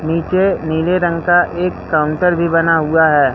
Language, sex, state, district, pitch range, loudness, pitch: Hindi, male, Madhya Pradesh, Katni, 160-175 Hz, -14 LUFS, 165 Hz